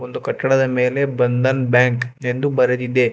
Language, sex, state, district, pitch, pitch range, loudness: Kannada, male, Karnataka, Bangalore, 125 Hz, 125-130 Hz, -18 LUFS